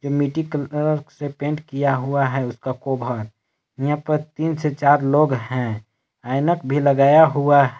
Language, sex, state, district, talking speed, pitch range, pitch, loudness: Hindi, male, Jharkhand, Palamu, 145 wpm, 130-150 Hz, 140 Hz, -20 LUFS